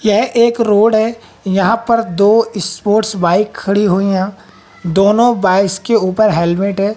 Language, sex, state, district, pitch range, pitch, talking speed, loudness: Hindi, female, Haryana, Jhajjar, 195-225 Hz, 205 Hz, 155 wpm, -13 LUFS